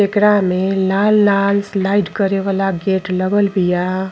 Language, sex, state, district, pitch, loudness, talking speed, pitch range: Bhojpuri, female, Uttar Pradesh, Gorakhpur, 195 Hz, -16 LUFS, 130 wpm, 190-200 Hz